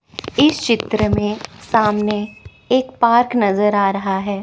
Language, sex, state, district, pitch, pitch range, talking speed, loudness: Hindi, female, Chandigarh, Chandigarh, 210 Hz, 205-235 Hz, 135 wpm, -17 LUFS